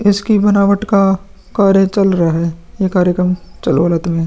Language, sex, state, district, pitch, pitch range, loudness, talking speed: Hindi, male, Bihar, Vaishali, 195 Hz, 175-200 Hz, -14 LUFS, 185 wpm